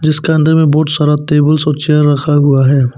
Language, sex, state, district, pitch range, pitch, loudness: Hindi, male, Arunachal Pradesh, Papum Pare, 145-155 Hz, 150 Hz, -11 LUFS